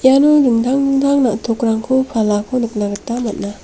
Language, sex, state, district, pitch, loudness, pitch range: Garo, female, Meghalaya, South Garo Hills, 240 Hz, -16 LUFS, 220-265 Hz